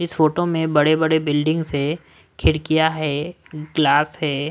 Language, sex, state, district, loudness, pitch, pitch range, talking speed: Hindi, male, Odisha, Sambalpur, -19 LUFS, 155 Hz, 150-160 Hz, 145 wpm